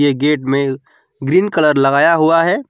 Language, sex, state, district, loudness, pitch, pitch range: Hindi, male, West Bengal, Alipurduar, -14 LUFS, 150 Hz, 140-165 Hz